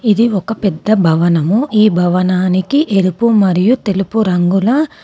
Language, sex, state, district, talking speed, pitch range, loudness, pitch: Telugu, female, Telangana, Komaram Bheem, 120 wpm, 185-225 Hz, -13 LUFS, 200 Hz